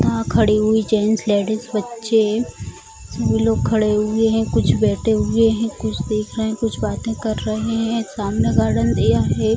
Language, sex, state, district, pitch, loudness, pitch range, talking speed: Hindi, female, Bihar, Jamui, 215 Hz, -19 LUFS, 190-225 Hz, 175 wpm